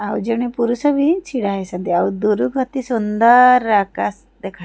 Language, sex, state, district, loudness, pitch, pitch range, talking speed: Odia, female, Odisha, Khordha, -17 LUFS, 230 Hz, 200-250 Hz, 165 wpm